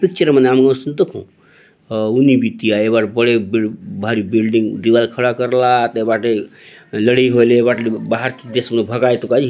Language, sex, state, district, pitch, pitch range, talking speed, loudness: Halbi, male, Chhattisgarh, Bastar, 120 Hz, 115-125 Hz, 195 wpm, -15 LUFS